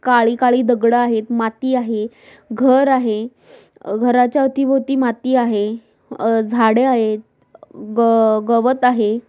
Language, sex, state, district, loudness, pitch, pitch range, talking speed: Marathi, female, Maharashtra, Sindhudurg, -16 LUFS, 235 Hz, 225-255 Hz, 115 wpm